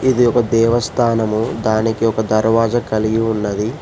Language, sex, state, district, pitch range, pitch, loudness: Telugu, male, Telangana, Hyderabad, 110-120 Hz, 115 Hz, -16 LUFS